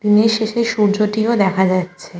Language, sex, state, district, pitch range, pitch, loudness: Bengali, female, West Bengal, Kolkata, 190-220 Hz, 210 Hz, -16 LUFS